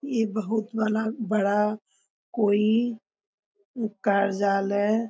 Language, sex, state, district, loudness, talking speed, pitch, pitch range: Hindi, female, Bihar, Begusarai, -25 LUFS, 80 wpm, 210 Hz, 205-220 Hz